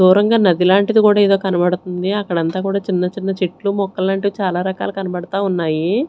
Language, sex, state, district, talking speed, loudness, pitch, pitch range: Telugu, female, Andhra Pradesh, Sri Satya Sai, 165 wpm, -17 LUFS, 190 Hz, 180-200 Hz